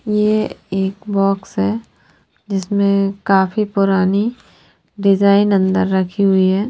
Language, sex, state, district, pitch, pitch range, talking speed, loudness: Hindi, female, Punjab, Fazilka, 195 Hz, 195-205 Hz, 105 wpm, -16 LUFS